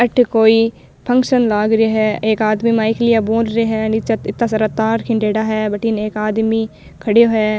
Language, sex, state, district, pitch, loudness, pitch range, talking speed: Rajasthani, female, Rajasthan, Nagaur, 220 Hz, -15 LUFS, 215-230 Hz, 180 wpm